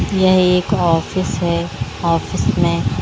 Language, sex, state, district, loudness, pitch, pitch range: Hindi, female, Haryana, Rohtak, -17 LUFS, 175 Hz, 170-185 Hz